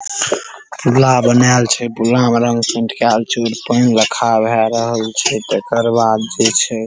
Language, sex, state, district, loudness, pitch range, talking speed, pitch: Maithili, male, Bihar, Saharsa, -14 LUFS, 115-120 Hz, 165 wpm, 115 Hz